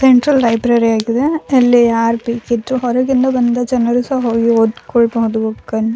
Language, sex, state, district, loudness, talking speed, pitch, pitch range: Kannada, female, Karnataka, Dakshina Kannada, -14 LUFS, 130 wpm, 235 Hz, 230-255 Hz